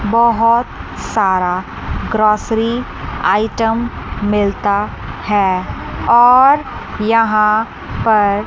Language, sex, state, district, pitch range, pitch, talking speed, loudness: Hindi, female, Chandigarh, Chandigarh, 205-230 Hz, 215 Hz, 65 wpm, -15 LUFS